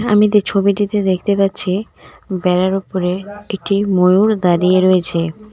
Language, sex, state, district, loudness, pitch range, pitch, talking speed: Bengali, female, West Bengal, Cooch Behar, -15 LUFS, 185-205 Hz, 195 Hz, 120 wpm